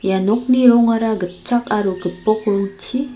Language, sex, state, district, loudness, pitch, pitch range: Garo, female, Meghalaya, South Garo Hills, -17 LUFS, 215 Hz, 190-240 Hz